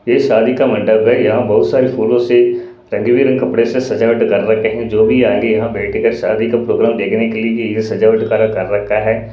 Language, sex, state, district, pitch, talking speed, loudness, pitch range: Hindi, male, Bihar, Kaimur, 115 Hz, 220 wpm, -13 LUFS, 110-120 Hz